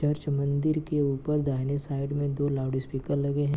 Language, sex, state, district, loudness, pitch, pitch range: Hindi, male, Bihar, Gopalganj, -28 LUFS, 140 Hz, 140-150 Hz